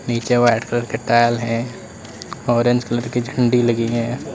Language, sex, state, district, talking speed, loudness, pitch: Hindi, male, Uttar Pradesh, Lalitpur, 165 wpm, -18 LUFS, 120 Hz